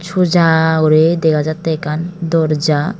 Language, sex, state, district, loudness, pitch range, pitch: Chakma, female, Tripura, Dhalai, -14 LUFS, 155-170 Hz, 160 Hz